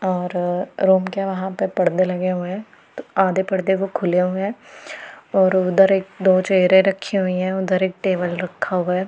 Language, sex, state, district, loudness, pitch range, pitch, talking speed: Hindi, female, Punjab, Pathankot, -19 LUFS, 180-190 Hz, 185 Hz, 200 wpm